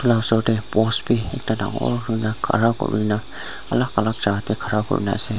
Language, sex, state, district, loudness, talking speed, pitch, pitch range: Nagamese, male, Nagaland, Dimapur, -21 LUFS, 190 wpm, 110 Hz, 105-115 Hz